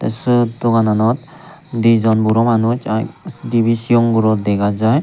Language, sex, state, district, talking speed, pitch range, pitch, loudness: Chakma, male, Tripura, Unakoti, 130 wpm, 110-120 Hz, 115 Hz, -15 LUFS